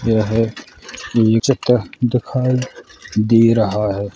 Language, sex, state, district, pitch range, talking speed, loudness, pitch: Bundeli, male, Uttar Pradesh, Jalaun, 110-125 Hz, 85 wpm, -17 LUFS, 115 Hz